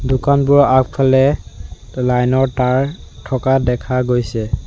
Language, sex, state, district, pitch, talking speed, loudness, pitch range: Assamese, male, Assam, Sonitpur, 130 Hz, 105 wpm, -15 LUFS, 120-135 Hz